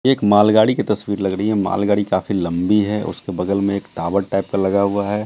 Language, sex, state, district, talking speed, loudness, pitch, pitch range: Hindi, male, Bihar, Katihar, 240 wpm, -18 LUFS, 100 Hz, 95-105 Hz